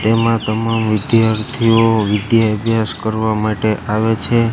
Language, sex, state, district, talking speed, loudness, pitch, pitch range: Gujarati, male, Gujarat, Gandhinagar, 120 wpm, -15 LUFS, 110 Hz, 110-115 Hz